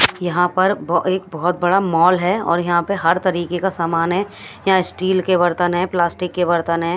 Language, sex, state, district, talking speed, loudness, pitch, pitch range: Hindi, female, Bihar, West Champaran, 205 wpm, -18 LUFS, 180 Hz, 170-185 Hz